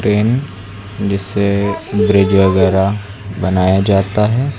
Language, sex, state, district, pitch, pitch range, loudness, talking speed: Hindi, male, Uttar Pradesh, Lucknow, 100 Hz, 95-105 Hz, -14 LUFS, 90 wpm